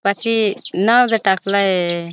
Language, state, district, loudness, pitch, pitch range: Bhili, Maharashtra, Dhule, -16 LUFS, 200 Hz, 190-225 Hz